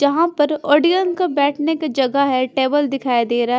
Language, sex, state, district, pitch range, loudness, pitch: Hindi, female, Bihar, Patna, 265-310 Hz, -17 LUFS, 285 Hz